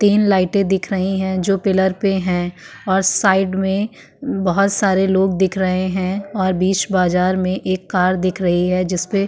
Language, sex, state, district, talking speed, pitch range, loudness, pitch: Hindi, female, Uttarakhand, Tehri Garhwal, 185 wpm, 185-195 Hz, -17 LUFS, 190 Hz